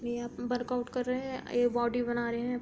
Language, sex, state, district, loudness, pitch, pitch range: Hindi, female, Uttar Pradesh, Budaun, -32 LUFS, 245 Hz, 240-250 Hz